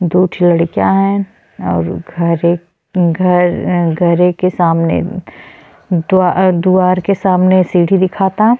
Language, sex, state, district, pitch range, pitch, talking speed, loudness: Bhojpuri, female, Uttar Pradesh, Deoria, 175-185 Hz, 180 Hz, 120 wpm, -13 LUFS